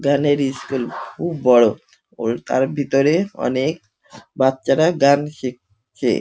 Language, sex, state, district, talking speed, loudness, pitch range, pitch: Bengali, male, West Bengal, Dakshin Dinajpur, 115 wpm, -19 LUFS, 125-145 Hz, 135 Hz